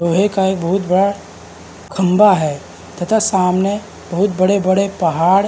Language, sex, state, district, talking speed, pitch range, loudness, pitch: Hindi, male, Uttarakhand, Uttarkashi, 155 wpm, 170-200 Hz, -15 LUFS, 190 Hz